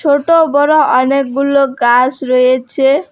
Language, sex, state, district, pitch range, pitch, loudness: Bengali, female, West Bengal, Alipurduar, 255-285 Hz, 275 Hz, -11 LUFS